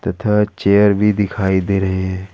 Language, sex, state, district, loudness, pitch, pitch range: Hindi, male, Jharkhand, Ranchi, -16 LUFS, 100 Hz, 95-105 Hz